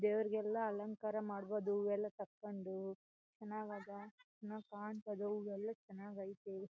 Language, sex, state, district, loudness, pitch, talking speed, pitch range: Kannada, female, Karnataka, Chamarajanagar, -44 LUFS, 210 Hz, 100 wpm, 200-215 Hz